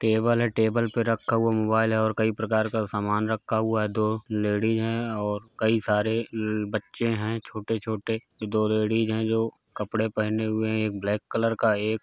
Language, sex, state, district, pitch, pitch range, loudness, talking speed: Hindi, male, Bihar, Gopalganj, 110 Hz, 110-115 Hz, -26 LUFS, 200 wpm